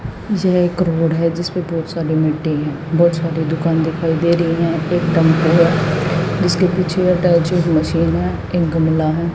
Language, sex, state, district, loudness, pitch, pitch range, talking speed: Hindi, female, Haryana, Jhajjar, -16 LUFS, 165 Hz, 160-170 Hz, 175 wpm